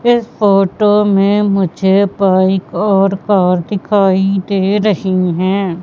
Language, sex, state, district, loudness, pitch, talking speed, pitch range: Hindi, female, Madhya Pradesh, Katni, -13 LUFS, 195 Hz, 115 wpm, 190-205 Hz